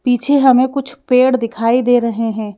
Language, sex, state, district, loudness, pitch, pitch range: Hindi, female, Madhya Pradesh, Bhopal, -14 LUFS, 245 Hz, 230-260 Hz